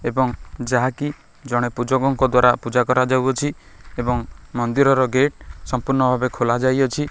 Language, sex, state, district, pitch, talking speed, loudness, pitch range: Odia, male, Odisha, Khordha, 125 Hz, 110 wpm, -20 LUFS, 120-135 Hz